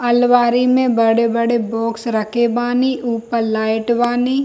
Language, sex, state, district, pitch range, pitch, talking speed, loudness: Hindi, female, Bihar, Darbhanga, 230-245 Hz, 235 Hz, 120 wpm, -16 LUFS